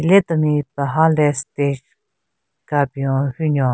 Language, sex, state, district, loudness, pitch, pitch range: Rengma, female, Nagaland, Kohima, -18 LUFS, 145 Hz, 135-155 Hz